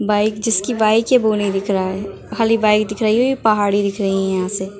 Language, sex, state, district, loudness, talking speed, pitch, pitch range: Hindi, female, Bihar, Muzaffarpur, -17 LUFS, 265 wpm, 210 Hz, 195-220 Hz